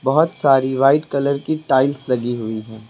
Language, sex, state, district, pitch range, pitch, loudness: Hindi, female, Uttar Pradesh, Lucknow, 125-140 Hz, 135 Hz, -18 LUFS